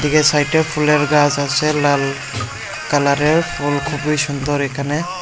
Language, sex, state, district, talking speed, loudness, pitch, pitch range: Bengali, male, Tripura, West Tripura, 125 wpm, -17 LUFS, 145 Hz, 145-150 Hz